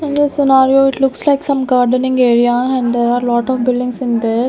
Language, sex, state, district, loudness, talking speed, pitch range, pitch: English, female, Maharashtra, Gondia, -13 LUFS, 225 wpm, 245-270 Hz, 255 Hz